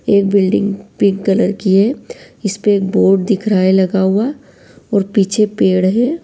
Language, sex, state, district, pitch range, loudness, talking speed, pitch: Hindi, female, Uttar Pradesh, Varanasi, 195-215 Hz, -14 LUFS, 165 wpm, 200 Hz